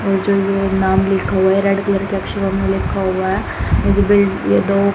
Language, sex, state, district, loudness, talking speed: Hindi, female, Haryana, Jhajjar, -16 LUFS, 195 wpm